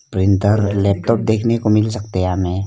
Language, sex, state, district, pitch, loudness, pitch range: Hindi, male, Arunachal Pradesh, Lower Dibang Valley, 100 Hz, -17 LUFS, 95-110 Hz